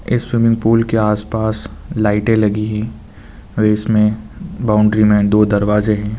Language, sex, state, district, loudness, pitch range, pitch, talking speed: Hindi, male, Rajasthan, Nagaur, -15 LUFS, 105-110 Hz, 105 Hz, 135 wpm